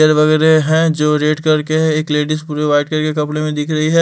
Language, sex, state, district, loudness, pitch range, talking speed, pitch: Hindi, male, Delhi, New Delhi, -14 LUFS, 150-155 Hz, 240 wpm, 155 Hz